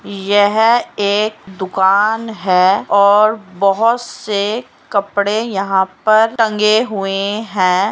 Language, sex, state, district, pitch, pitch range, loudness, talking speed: Hindi, female, Uttar Pradesh, Muzaffarnagar, 205 Hz, 195-220 Hz, -14 LUFS, 100 wpm